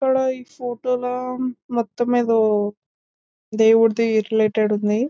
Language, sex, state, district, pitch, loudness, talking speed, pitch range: Telugu, female, Telangana, Nalgonda, 230 Hz, -20 LUFS, 105 wpm, 215-250 Hz